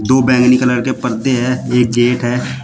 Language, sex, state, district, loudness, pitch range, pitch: Hindi, male, Uttar Pradesh, Shamli, -14 LUFS, 120-130 Hz, 125 Hz